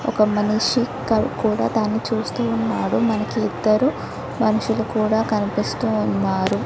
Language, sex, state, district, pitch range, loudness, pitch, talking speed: Telugu, female, Telangana, Hyderabad, 210-230 Hz, -21 LUFS, 220 Hz, 115 wpm